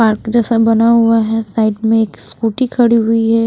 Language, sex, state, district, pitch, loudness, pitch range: Hindi, female, Haryana, Rohtak, 225 Hz, -13 LUFS, 220-230 Hz